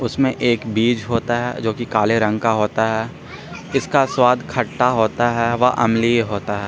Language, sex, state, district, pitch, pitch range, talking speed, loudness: Hindi, male, Bihar, Jamui, 120 Hz, 110-125 Hz, 190 wpm, -18 LUFS